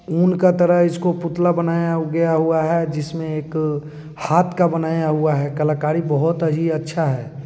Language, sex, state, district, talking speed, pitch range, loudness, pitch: Hindi, male, Bihar, East Champaran, 175 wpm, 155-170 Hz, -19 LUFS, 160 Hz